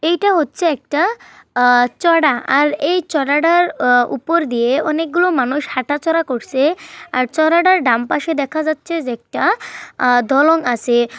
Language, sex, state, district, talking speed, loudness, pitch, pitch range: Bengali, female, West Bengal, Kolkata, 140 wpm, -16 LUFS, 300 Hz, 255-335 Hz